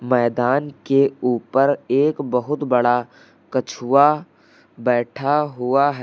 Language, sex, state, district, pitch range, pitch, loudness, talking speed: Hindi, male, Uttar Pradesh, Lucknow, 125-145 Hz, 130 Hz, -19 LUFS, 100 wpm